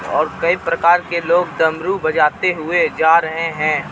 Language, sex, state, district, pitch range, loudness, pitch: Hindi, male, Jharkhand, Ranchi, 160-175 Hz, -16 LUFS, 165 Hz